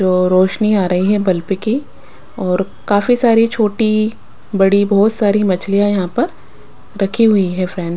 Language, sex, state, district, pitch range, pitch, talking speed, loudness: Hindi, female, Punjab, Pathankot, 185-215 Hz, 200 Hz, 165 wpm, -15 LUFS